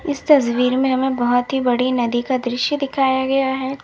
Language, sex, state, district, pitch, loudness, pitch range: Hindi, female, Uttar Pradesh, Lalitpur, 260 Hz, -18 LUFS, 245-270 Hz